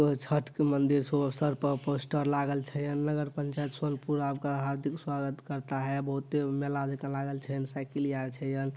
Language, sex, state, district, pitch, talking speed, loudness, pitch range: Maithili, male, Bihar, Madhepura, 140 Hz, 185 wpm, -32 LUFS, 140-145 Hz